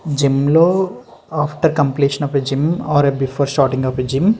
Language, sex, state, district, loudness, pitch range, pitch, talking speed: Telugu, male, Andhra Pradesh, Srikakulam, -17 LUFS, 135-155 Hz, 145 Hz, 165 wpm